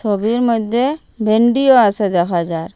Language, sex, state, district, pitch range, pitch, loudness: Bengali, female, Assam, Hailakandi, 200-240 Hz, 220 Hz, -15 LUFS